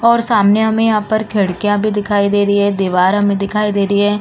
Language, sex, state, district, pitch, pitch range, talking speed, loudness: Hindi, female, Uttar Pradesh, Varanasi, 205 Hz, 200-215 Hz, 240 wpm, -14 LUFS